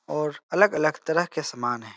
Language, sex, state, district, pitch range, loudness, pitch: Hindi, male, Bihar, Supaul, 120-165 Hz, -25 LUFS, 150 Hz